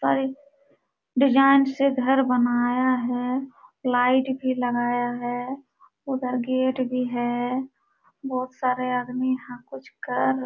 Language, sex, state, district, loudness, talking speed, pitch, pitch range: Hindi, male, Bihar, Supaul, -24 LUFS, 115 wpm, 255 Hz, 245-265 Hz